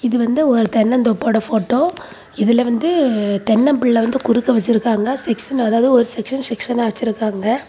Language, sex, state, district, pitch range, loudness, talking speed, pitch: Tamil, female, Tamil Nadu, Kanyakumari, 225-255 Hz, -16 LUFS, 135 wpm, 235 Hz